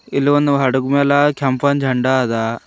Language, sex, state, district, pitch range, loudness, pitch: Kannada, male, Karnataka, Bidar, 130-140 Hz, -16 LUFS, 135 Hz